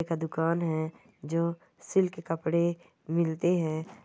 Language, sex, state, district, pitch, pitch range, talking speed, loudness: Hindi, female, West Bengal, North 24 Parganas, 165 Hz, 160-170 Hz, 135 wpm, -30 LUFS